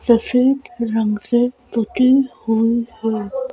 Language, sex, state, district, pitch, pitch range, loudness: Hindi, female, Madhya Pradesh, Bhopal, 235 Hz, 225-255 Hz, -18 LUFS